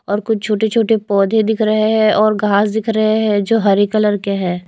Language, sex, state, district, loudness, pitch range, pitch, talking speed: Hindi, female, Maharashtra, Mumbai Suburban, -15 LUFS, 205-220 Hz, 215 Hz, 220 wpm